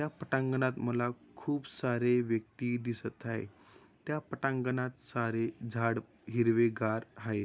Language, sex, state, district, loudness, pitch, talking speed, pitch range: Marathi, male, Maharashtra, Dhule, -34 LUFS, 120 Hz, 105 wpm, 115-130 Hz